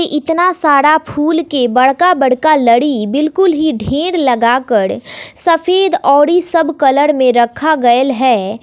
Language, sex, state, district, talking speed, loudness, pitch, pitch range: Hindi, female, Bihar, West Champaran, 130 wpm, -12 LUFS, 290 Hz, 255-330 Hz